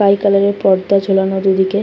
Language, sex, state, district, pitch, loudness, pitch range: Bengali, female, West Bengal, Kolkata, 195 Hz, -14 LUFS, 190-200 Hz